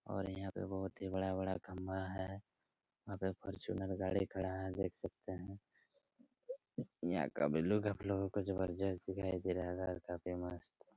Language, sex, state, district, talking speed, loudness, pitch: Hindi, male, Chhattisgarh, Raigarh, 165 wpm, -41 LUFS, 95 Hz